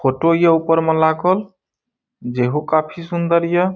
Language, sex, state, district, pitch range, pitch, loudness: Maithili, male, Bihar, Saharsa, 160-180 Hz, 165 Hz, -17 LUFS